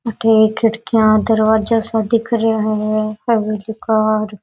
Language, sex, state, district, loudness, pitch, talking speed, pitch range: Rajasthani, female, Rajasthan, Nagaur, -16 LUFS, 220 Hz, 150 wpm, 215-225 Hz